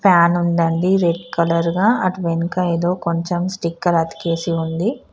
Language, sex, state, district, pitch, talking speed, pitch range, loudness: Telugu, female, Telangana, Karimnagar, 170 Hz, 140 wpm, 170-185 Hz, -18 LUFS